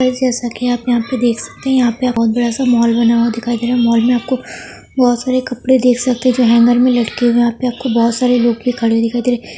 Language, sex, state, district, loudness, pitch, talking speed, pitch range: Hindi, female, Bihar, Saran, -14 LUFS, 245 Hz, 305 wpm, 235-250 Hz